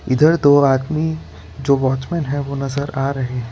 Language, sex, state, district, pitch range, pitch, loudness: Hindi, male, Gujarat, Valsad, 135-150 Hz, 140 Hz, -18 LUFS